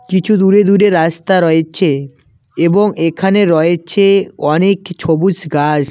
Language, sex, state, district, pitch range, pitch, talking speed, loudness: Bengali, male, West Bengal, Cooch Behar, 160-195 Hz, 170 Hz, 110 wpm, -12 LUFS